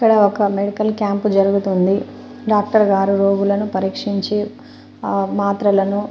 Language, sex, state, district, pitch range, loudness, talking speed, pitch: Telugu, female, Telangana, Nalgonda, 195-210 Hz, -17 LUFS, 100 wpm, 200 Hz